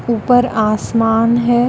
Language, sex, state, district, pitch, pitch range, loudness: Hindi, female, Andhra Pradesh, Chittoor, 235 Hz, 225-245 Hz, -14 LUFS